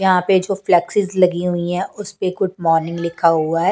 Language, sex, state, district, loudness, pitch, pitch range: Hindi, female, Punjab, Pathankot, -18 LUFS, 180 Hz, 170-190 Hz